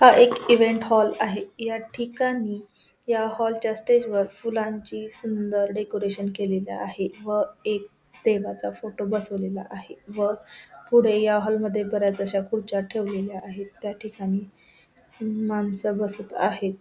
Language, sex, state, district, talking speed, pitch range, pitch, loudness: Marathi, female, Maharashtra, Solapur, 125 wpm, 200-220 Hz, 210 Hz, -25 LUFS